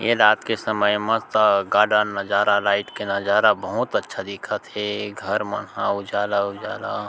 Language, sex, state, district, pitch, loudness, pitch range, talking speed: Chhattisgarhi, male, Chhattisgarh, Sukma, 105 Hz, -21 LUFS, 100-105 Hz, 150 wpm